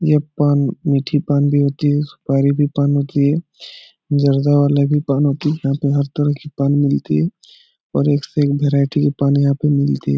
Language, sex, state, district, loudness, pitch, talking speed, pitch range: Hindi, male, Bihar, Jahanabad, -17 LUFS, 145 Hz, 220 wpm, 140-145 Hz